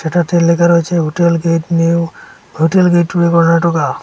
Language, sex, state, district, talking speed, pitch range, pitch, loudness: Bengali, male, Assam, Hailakandi, 150 wpm, 165-170 Hz, 170 Hz, -12 LUFS